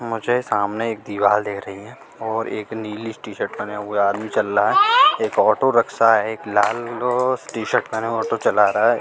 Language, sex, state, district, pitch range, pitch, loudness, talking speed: Hindi, male, Bihar, Katihar, 105-120 Hz, 110 Hz, -19 LUFS, 200 wpm